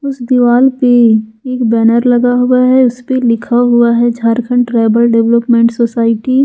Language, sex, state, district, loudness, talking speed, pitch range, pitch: Hindi, female, Jharkhand, Ranchi, -10 LUFS, 160 wpm, 230-250 Hz, 240 Hz